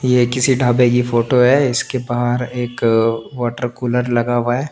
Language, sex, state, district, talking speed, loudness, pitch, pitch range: Hindi, male, Chandigarh, Chandigarh, 180 wpm, -16 LUFS, 125 Hz, 120-125 Hz